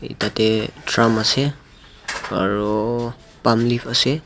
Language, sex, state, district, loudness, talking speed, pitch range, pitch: Nagamese, male, Nagaland, Dimapur, -20 LUFS, 100 wpm, 110-125 Hz, 115 Hz